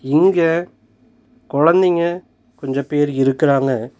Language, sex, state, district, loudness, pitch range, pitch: Tamil, male, Tamil Nadu, Nilgiris, -17 LUFS, 140-175 Hz, 150 Hz